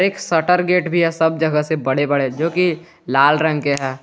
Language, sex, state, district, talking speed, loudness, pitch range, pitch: Hindi, male, Jharkhand, Garhwa, 240 wpm, -17 LUFS, 145-175 Hz, 160 Hz